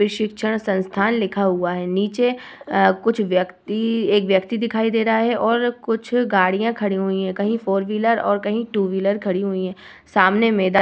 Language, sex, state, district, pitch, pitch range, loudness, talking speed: Hindi, female, Uttar Pradesh, Budaun, 205 Hz, 195-225 Hz, -20 LUFS, 190 wpm